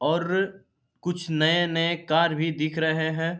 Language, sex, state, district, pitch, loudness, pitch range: Hindi, male, Bihar, Darbhanga, 165 Hz, -25 LUFS, 160-170 Hz